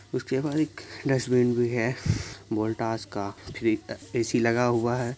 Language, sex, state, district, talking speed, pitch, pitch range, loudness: Maithili, male, Bihar, Supaul, 140 wpm, 120 Hz, 110-125 Hz, -27 LUFS